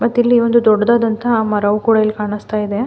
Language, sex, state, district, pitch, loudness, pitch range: Kannada, female, Karnataka, Mysore, 220 Hz, -15 LUFS, 210-235 Hz